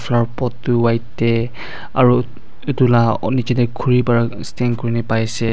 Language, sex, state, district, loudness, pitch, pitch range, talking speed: Nagamese, male, Nagaland, Dimapur, -17 LUFS, 120 Hz, 115-125 Hz, 185 wpm